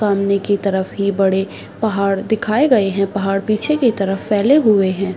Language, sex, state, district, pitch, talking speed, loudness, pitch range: Hindi, female, Bihar, Saharsa, 200 Hz, 210 wpm, -16 LUFS, 195-215 Hz